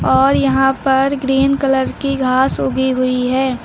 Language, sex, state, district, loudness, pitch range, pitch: Hindi, female, Uttar Pradesh, Lucknow, -15 LUFS, 260-270 Hz, 265 Hz